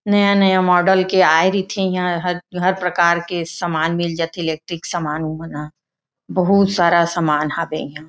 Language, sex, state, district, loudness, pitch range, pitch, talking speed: Chhattisgarhi, female, Chhattisgarh, Raigarh, -17 LUFS, 160-185 Hz, 170 Hz, 165 wpm